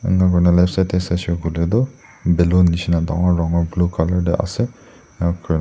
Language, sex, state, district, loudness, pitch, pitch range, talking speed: Nagamese, male, Nagaland, Dimapur, -18 LUFS, 90 Hz, 85-95 Hz, 195 wpm